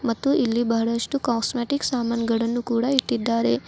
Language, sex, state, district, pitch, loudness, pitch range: Kannada, female, Karnataka, Bidar, 235 Hz, -23 LUFS, 230-250 Hz